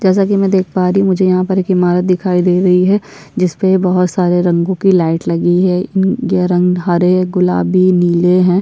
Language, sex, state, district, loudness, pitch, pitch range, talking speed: Hindi, female, Bihar, Kishanganj, -13 LUFS, 180 Hz, 180-190 Hz, 215 wpm